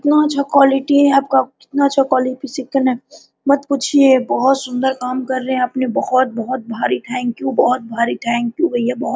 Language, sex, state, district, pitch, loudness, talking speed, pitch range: Hindi, female, Jharkhand, Sahebganj, 265 Hz, -16 LUFS, 185 wpm, 250-280 Hz